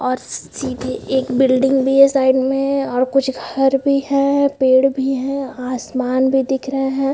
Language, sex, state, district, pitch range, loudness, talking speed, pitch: Hindi, female, Chhattisgarh, Bilaspur, 260-275 Hz, -17 LUFS, 175 wpm, 270 Hz